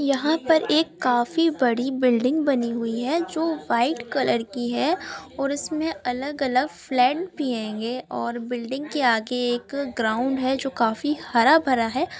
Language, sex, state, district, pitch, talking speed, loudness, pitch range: Hindi, female, Andhra Pradesh, Chittoor, 265 Hz, 45 wpm, -23 LUFS, 240-305 Hz